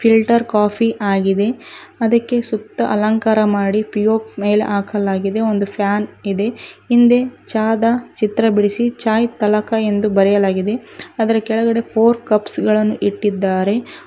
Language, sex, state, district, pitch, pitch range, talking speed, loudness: Kannada, female, Karnataka, Koppal, 215 Hz, 205-230 Hz, 120 wpm, -16 LUFS